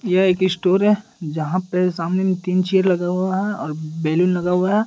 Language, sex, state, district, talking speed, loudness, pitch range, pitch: Hindi, male, Uttar Pradesh, Deoria, 220 wpm, -19 LUFS, 175-190 Hz, 185 Hz